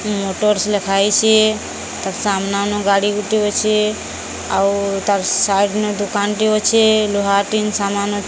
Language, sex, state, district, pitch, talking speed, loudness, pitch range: Odia, female, Odisha, Sambalpur, 205 Hz, 115 wpm, -16 LUFS, 200-215 Hz